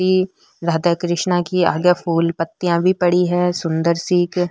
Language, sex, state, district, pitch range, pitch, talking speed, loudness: Rajasthani, female, Rajasthan, Nagaur, 170-180 Hz, 175 Hz, 160 wpm, -18 LUFS